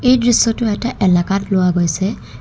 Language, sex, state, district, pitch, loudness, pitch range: Assamese, female, Assam, Kamrup Metropolitan, 195 Hz, -16 LUFS, 180-235 Hz